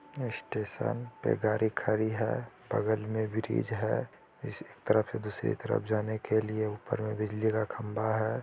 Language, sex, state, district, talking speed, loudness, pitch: Hindi, male, Jharkhand, Jamtara, 170 wpm, -32 LUFS, 110 Hz